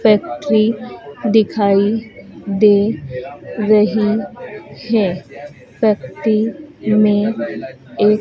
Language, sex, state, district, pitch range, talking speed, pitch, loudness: Hindi, female, Madhya Pradesh, Dhar, 145-215 Hz, 60 wpm, 210 Hz, -16 LUFS